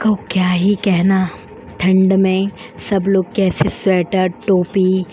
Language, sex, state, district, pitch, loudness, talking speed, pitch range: Hindi, female, Uttar Pradesh, Jyotiba Phule Nagar, 190 Hz, -16 LUFS, 140 wpm, 185-195 Hz